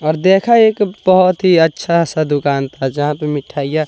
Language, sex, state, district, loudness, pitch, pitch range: Hindi, male, Bihar, West Champaran, -14 LUFS, 155 Hz, 145-185 Hz